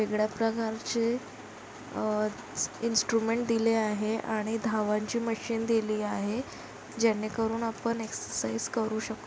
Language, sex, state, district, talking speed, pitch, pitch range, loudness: Marathi, female, Maharashtra, Dhule, 110 wpm, 225 Hz, 215-230 Hz, -30 LUFS